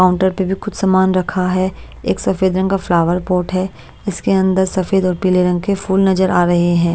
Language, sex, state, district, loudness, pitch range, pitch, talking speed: Hindi, female, Bihar, Patna, -16 LUFS, 180-190 Hz, 185 Hz, 225 wpm